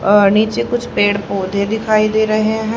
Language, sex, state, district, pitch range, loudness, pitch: Hindi, female, Haryana, Rohtak, 200-220 Hz, -15 LUFS, 215 Hz